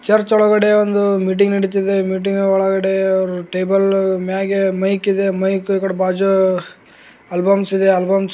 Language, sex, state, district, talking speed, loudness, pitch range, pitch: Kannada, male, Karnataka, Gulbarga, 135 wpm, -16 LUFS, 190-195 Hz, 195 Hz